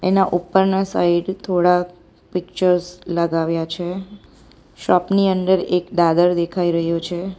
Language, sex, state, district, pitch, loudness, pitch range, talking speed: Gujarati, female, Gujarat, Valsad, 180 Hz, -19 LUFS, 175-190 Hz, 120 wpm